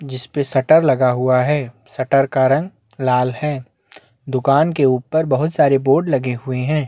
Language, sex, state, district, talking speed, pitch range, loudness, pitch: Hindi, male, Chhattisgarh, Bastar, 175 wpm, 125-145 Hz, -17 LUFS, 130 Hz